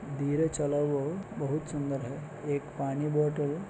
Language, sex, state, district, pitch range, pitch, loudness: Hindi, male, Maharashtra, Solapur, 140-150 Hz, 145 Hz, -32 LUFS